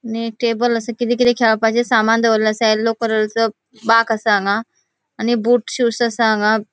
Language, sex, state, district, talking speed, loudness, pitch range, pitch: Konkani, female, Goa, North and South Goa, 170 wpm, -17 LUFS, 220-235 Hz, 225 Hz